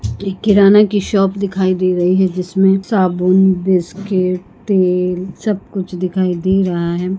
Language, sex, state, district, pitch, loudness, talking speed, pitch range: Hindi, female, Goa, North and South Goa, 185 Hz, -15 LUFS, 150 wpm, 180-195 Hz